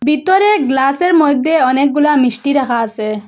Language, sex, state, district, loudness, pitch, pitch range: Bengali, female, Assam, Hailakandi, -12 LUFS, 280 Hz, 255-300 Hz